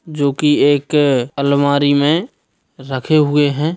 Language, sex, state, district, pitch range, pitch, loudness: Hindi, male, Bihar, Sitamarhi, 140-150 Hz, 145 Hz, -15 LUFS